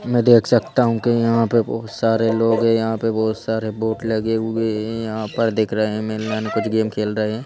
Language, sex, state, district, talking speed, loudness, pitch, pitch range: Hindi, male, Madhya Pradesh, Bhopal, 235 wpm, -19 LUFS, 110 Hz, 110-115 Hz